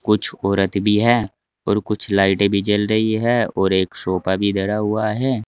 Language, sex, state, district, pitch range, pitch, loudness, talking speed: Hindi, male, Uttar Pradesh, Saharanpur, 95-110 Hz, 105 Hz, -19 LUFS, 195 wpm